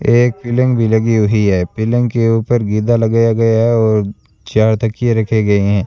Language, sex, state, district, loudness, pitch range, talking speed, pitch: Hindi, male, Rajasthan, Bikaner, -14 LUFS, 110-120 Hz, 195 wpm, 115 Hz